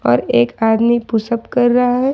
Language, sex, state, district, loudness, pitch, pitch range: Hindi, female, Jharkhand, Ranchi, -15 LUFS, 235 Hz, 220-245 Hz